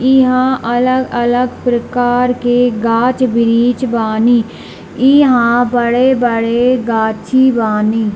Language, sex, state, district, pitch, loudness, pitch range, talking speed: Hindi, male, Bihar, Darbhanga, 245 Hz, -12 LUFS, 230-255 Hz, 95 wpm